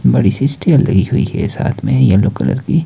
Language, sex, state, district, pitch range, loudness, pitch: Hindi, male, Himachal Pradesh, Shimla, 100-150 Hz, -14 LUFS, 130 Hz